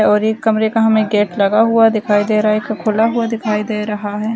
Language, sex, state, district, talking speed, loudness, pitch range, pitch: Hindi, female, Bihar, Muzaffarpur, 275 wpm, -15 LUFS, 210-220 Hz, 215 Hz